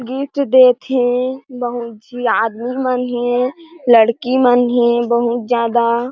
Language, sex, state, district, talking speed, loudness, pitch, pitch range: Chhattisgarhi, female, Chhattisgarh, Jashpur, 125 wpm, -15 LUFS, 245 Hz, 235-255 Hz